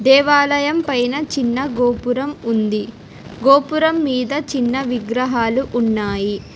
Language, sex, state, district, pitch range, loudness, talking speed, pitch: Telugu, female, Telangana, Hyderabad, 235-285 Hz, -17 LUFS, 90 wpm, 255 Hz